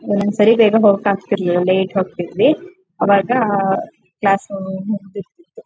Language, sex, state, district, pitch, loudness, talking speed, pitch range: Kannada, female, Karnataka, Shimoga, 200 Hz, -16 LUFS, 125 wpm, 190-220 Hz